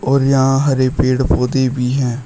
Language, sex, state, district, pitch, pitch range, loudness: Hindi, male, Uttar Pradesh, Shamli, 130 Hz, 130-135 Hz, -15 LUFS